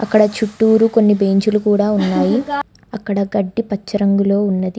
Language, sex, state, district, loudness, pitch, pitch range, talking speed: Telugu, female, Telangana, Hyderabad, -16 LUFS, 210 Hz, 200-220 Hz, 125 wpm